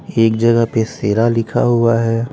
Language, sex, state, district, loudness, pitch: Hindi, female, Bihar, West Champaran, -15 LUFS, 115 Hz